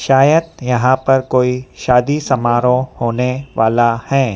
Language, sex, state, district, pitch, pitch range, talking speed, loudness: Hindi, female, Madhya Pradesh, Dhar, 130 Hz, 125-135 Hz, 125 wpm, -15 LUFS